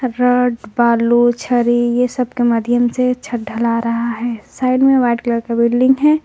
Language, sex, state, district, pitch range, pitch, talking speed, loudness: Hindi, female, Jharkhand, Palamu, 235-250 Hz, 240 Hz, 190 wpm, -15 LUFS